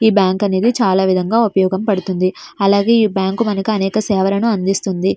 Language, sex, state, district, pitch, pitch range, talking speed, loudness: Telugu, female, Andhra Pradesh, Srikakulam, 195 Hz, 190-215 Hz, 150 wpm, -15 LUFS